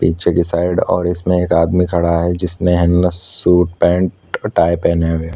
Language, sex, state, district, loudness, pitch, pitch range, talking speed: Hindi, male, Chhattisgarh, Korba, -15 LUFS, 85 Hz, 85-90 Hz, 200 wpm